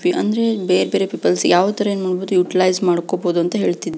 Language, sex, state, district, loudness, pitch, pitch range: Kannada, female, Karnataka, Belgaum, -18 LUFS, 185 Hz, 175-200 Hz